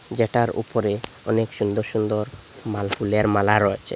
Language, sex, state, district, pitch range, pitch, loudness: Bengali, male, Assam, Hailakandi, 105-115 Hz, 110 Hz, -23 LUFS